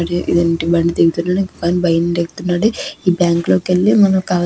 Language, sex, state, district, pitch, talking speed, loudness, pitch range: Telugu, female, Andhra Pradesh, Chittoor, 175 Hz, 95 wpm, -15 LUFS, 170-185 Hz